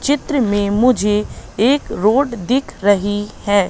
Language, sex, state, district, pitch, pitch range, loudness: Hindi, female, Madhya Pradesh, Katni, 210 Hz, 205-260 Hz, -16 LUFS